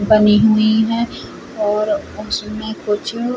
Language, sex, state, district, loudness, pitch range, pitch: Hindi, female, Chhattisgarh, Rajnandgaon, -17 LUFS, 210-225 Hz, 215 Hz